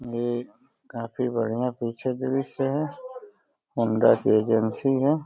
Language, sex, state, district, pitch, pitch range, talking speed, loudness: Hindi, male, Uttar Pradesh, Deoria, 125 Hz, 115-135 Hz, 115 wpm, -25 LUFS